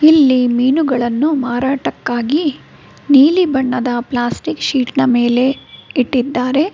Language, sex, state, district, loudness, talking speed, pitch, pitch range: Kannada, female, Karnataka, Bangalore, -15 LUFS, 90 wpm, 260 Hz, 245-285 Hz